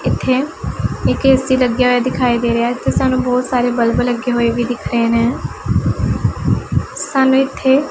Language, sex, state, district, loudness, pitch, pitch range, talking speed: Punjabi, female, Punjab, Pathankot, -16 LUFS, 250 Hz, 240-265 Hz, 165 wpm